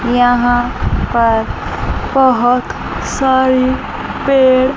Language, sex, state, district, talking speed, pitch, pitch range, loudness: Hindi, female, Chandigarh, Chandigarh, 65 wpm, 255 Hz, 245-260 Hz, -14 LUFS